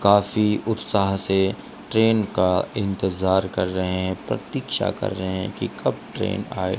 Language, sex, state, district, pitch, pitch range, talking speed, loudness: Hindi, male, Rajasthan, Bikaner, 95 Hz, 95-100 Hz, 150 wpm, -22 LUFS